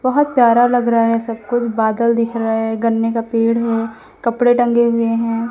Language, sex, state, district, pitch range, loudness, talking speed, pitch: Hindi, female, Madhya Pradesh, Umaria, 230-235 Hz, -16 LUFS, 205 wpm, 230 Hz